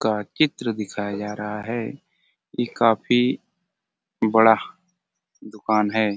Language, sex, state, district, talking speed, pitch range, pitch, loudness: Hindi, male, Chhattisgarh, Bastar, 105 wpm, 105-155 Hz, 115 Hz, -22 LUFS